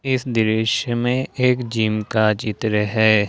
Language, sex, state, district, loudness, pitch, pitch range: Hindi, male, Jharkhand, Ranchi, -19 LUFS, 110 Hz, 110-125 Hz